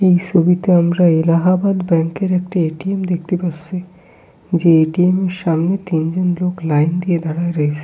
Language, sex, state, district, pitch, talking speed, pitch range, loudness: Bengali, male, West Bengal, Kolkata, 175 Hz, 155 wpm, 165-185 Hz, -16 LUFS